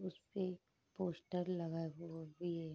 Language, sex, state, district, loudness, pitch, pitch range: Hindi, female, Bihar, Saharsa, -44 LUFS, 175 Hz, 165-180 Hz